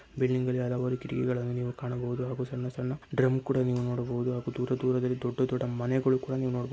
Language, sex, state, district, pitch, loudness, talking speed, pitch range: Kannada, male, Karnataka, Raichur, 125 Hz, -30 LUFS, 205 wpm, 125-130 Hz